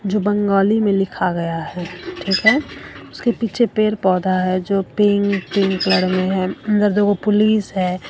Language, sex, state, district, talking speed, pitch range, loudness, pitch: Hindi, female, Bihar, Katihar, 180 wpm, 185-210 Hz, -18 LUFS, 195 Hz